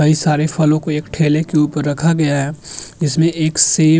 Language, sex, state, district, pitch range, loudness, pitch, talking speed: Hindi, male, Uttar Pradesh, Jyotiba Phule Nagar, 150-160 Hz, -15 LUFS, 155 Hz, 225 wpm